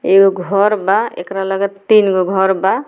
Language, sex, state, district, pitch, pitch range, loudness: Bhojpuri, female, Bihar, Muzaffarpur, 195 Hz, 190-200 Hz, -14 LUFS